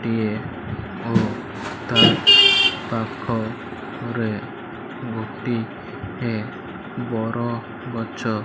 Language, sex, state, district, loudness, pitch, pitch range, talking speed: Odia, male, Odisha, Malkangiri, -20 LUFS, 115 Hz, 110-120 Hz, 55 wpm